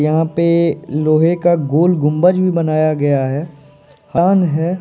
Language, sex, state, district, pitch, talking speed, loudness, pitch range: Hindi, male, Bihar, Purnia, 160 Hz, 135 wpm, -15 LUFS, 150-170 Hz